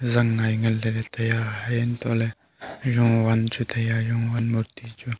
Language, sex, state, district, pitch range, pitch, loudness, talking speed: Wancho, male, Arunachal Pradesh, Longding, 115-120 Hz, 115 Hz, -24 LUFS, 125 wpm